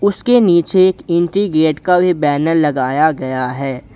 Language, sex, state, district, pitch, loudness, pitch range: Hindi, male, Jharkhand, Garhwa, 160 Hz, -14 LUFS, 140-180 Hz